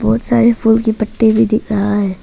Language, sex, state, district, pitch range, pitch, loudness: Hindi, female, Arunachal Pradesh, Papum Pare, 215-225 Hz, 220 Hz, -13 LUFS